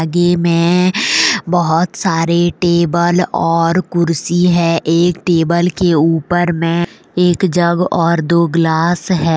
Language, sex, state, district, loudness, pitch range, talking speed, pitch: Hindi, female, Jharkhand, Deoghar, -13 LUFS, 165-175 Hz, 120 wpm, 170 Hz